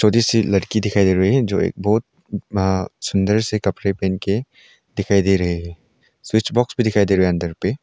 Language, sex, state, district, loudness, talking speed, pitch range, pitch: Hindi, male, Arunachal Pradesh, Longding, -19 LUFS, 205 wpm, 95-110 Hz, 100 Hz